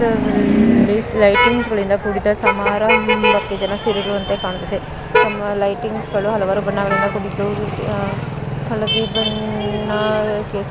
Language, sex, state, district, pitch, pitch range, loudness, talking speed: Kannada, female, Karnataka, Mysore, 210 Hz, 200-220 Hz, -17 LUFS, 105 wpm